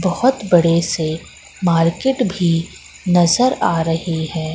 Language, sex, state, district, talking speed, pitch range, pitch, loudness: Hindi, female, Madhya Pradesh, Katni, 120 wpm, 165-185 Hz, 170 Hz, -17 LUFS